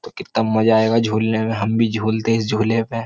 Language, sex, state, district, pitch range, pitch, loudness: Hindi, male, Uttar Pradesh, Jyotiba Phule Nagar, 110-115 Hz, 110 Hz, -18 LUFS